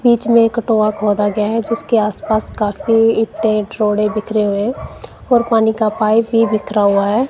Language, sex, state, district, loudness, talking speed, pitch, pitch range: Hindi, female, Punjab, Kapurthala, -15 LUFS, 180 wpm, 220 Hz, 210-230 Hz